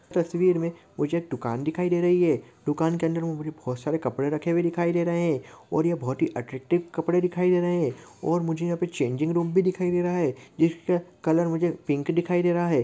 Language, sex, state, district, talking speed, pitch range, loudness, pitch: Hindi, male, Chhattisgarh, Korba, 245 wpm, 155-175 Hz, -26 LUFS, 170 Hz